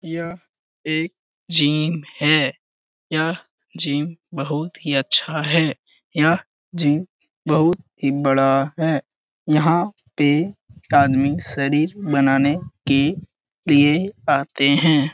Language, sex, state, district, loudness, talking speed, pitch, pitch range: Hindi, male, Bihar, Jamui, -19 LUFS, 105 wpm, 150 Hz, 140-165 Hz